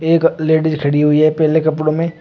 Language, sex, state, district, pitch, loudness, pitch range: Hindi, male, Uttar Pradesh, Shamli, 160 Hz, -14 LUFS, 155-160 Hz